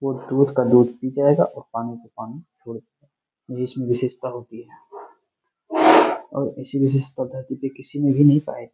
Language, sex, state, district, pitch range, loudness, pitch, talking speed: Hindi, male, Bihar, Jamui, 125-140 Hz, -20 LUFS, 135 Hz, 130 wpm